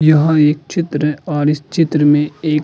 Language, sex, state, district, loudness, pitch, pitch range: Hindi, male, Uttar Pradesh, Jalaun, -15 LUFS, 150 Hz, 150-155 Hz